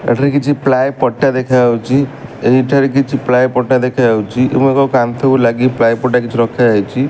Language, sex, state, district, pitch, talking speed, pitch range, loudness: Odia, male, Odisha, Malkangiri, 130 Hz, 185 wpm, 120-135 Hz, -13 LUFS